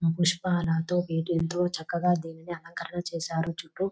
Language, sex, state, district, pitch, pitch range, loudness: Telugu, female, Telangana, Nalgonda, 170 Hz, 165-175 Hz, -29 LUFS